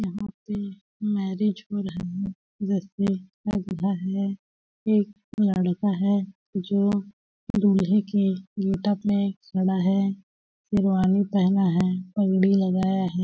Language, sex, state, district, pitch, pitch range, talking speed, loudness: Hindi, female, Chhattisgarh, Balrampur, 195 Hz, 190-205 Hz, 120 wpm, -25 LUFS